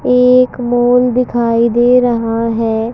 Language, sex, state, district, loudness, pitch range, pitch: Hindi, female, Haryana, Jhajjar, -12 LUFS, 230-250 Hz, 245 Hz